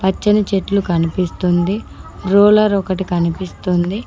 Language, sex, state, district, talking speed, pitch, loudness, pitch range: Telugu, female, Telangana, Mahabubabad, 90 wpm, 190 Hz, -16 LUFS, 180-200 Hz